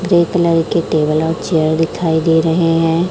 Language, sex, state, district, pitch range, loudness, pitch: Hindi, male, Chhattisgarh, Raipur, 160-170 Hz, -14 LUFS, 165 Hz